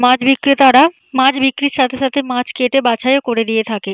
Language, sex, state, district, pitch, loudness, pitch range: Bengali, female, West Bengal, Jalpaiguri, 260 Hz, -13 LUFS, 245-270 Hz